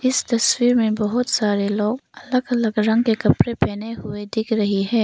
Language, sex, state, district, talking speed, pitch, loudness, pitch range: Hindi, female, Arunachal Pradesh, Papum Pare, 190 wpm, 225 Hz, -20 LUFS, 210-240 Hz